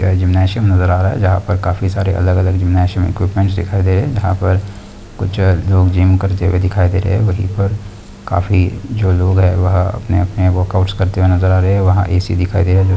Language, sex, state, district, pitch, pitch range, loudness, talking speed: Hindi, male, Bihar, Begusarai, 95 Hz, 90-95 Hz, -14 LUFS, 245 wpm